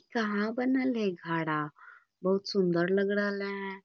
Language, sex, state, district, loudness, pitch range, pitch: Magahi, female, Bihar, Lakhisarai, -30 LUFS, 190-230 Hz, 200 Hz